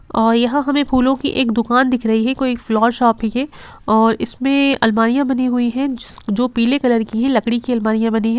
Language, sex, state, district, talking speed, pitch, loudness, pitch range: Hindi, female, Bihar, Gopalganj, 220 wpm, 240 Hz, -16 LUFS, 225-260 Hz